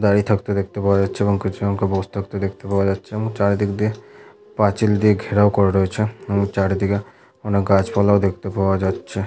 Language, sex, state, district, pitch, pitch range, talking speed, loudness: Bengali, male, West Bengal, Malda, 100 Hz, 100-105 Hz, 195 wpm, -20 LUFS